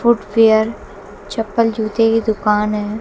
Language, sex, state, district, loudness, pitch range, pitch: Hindi, female, Haryana, Jhajjar, -16 LUFS, 210-225 Hz, 220 Hz